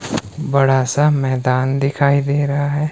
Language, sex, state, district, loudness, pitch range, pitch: Hindi, male, Himachal Pradesh, Shimla, -17 LUFS, 135-145 Hz, 140 Hz